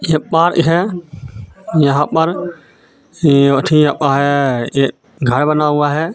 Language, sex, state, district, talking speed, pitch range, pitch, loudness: Hindi, male, Jharkhand, Deoghar, 100 wpm, 140-165 Hz, 150 Hz, -14 LUFS